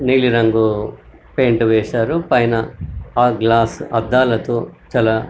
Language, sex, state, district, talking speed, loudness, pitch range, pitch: Telugu, male, Telangana, Karimnagar, 115 wpm, -16 LUFS, 110-125 Hz, 115 Hz